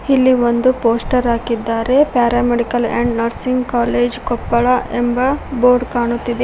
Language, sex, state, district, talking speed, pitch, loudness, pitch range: Kannada, female, Karnataka, Koppal, 110 wpm, 240 Hz, -16 LUFS, 235-250 Hz